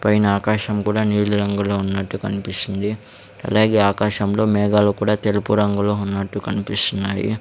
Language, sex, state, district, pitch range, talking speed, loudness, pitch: Telugu, male, Andhra Pradesh, Sri Satya Sai, 100-105 Hz, 120 wpm, -19 LUFS, 105 Hz